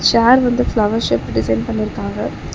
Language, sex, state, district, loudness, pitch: Tamil, female, Tamil Nadu, Chennai, -16 LUFS, 215 Hz